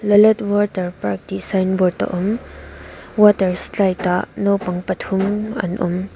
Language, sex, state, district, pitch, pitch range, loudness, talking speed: Mizo, female, Mizoram, Aizawl, 190 Hz, 180-205 Hz, -19 LUFS, 145 wpm